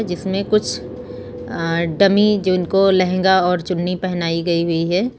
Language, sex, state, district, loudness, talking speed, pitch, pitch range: Hindi, female, Uttar Pradesh, Lucknow, -17 LUFS, 150 wpm, 185 Hz, 175-195 Hz